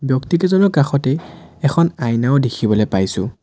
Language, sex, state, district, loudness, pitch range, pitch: Assamese, male, Assam, Sonitpur, -17 LUFS, 120-165 Hz, 140 Hz